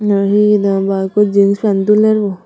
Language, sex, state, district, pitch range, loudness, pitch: Chakma, female, Tripura, Unakoti, 195-210 Hz, -12 LUFS, 200 Hz